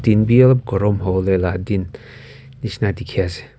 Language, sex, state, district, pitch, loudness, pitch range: Nagamese, male, Nagaland, Kohima, 105 Hz, -17 LUFS, 95-125 Hz